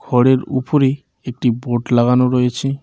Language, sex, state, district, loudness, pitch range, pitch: Bengali, male, West Bengal, Cooch Behar, -16 LUFS, 125-135 Hz, 125 Hz